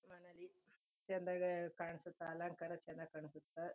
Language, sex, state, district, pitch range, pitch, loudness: Kannada, female, Karnataka, Chamarajanagar, 165-180 Hz, 170 Hz, -47 LUFS